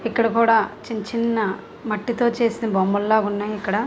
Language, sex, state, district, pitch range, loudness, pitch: Telugu, female, Andhra Pradesh, Chittoor, 210-230 Hz, -21 LUFS, 220 Hz